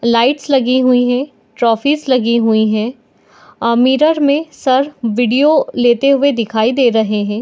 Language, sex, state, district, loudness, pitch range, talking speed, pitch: Hindi, female, Bihar, Madhepura, -13 LUFS, 230-275 Hz, 155 wpm, 250 Hz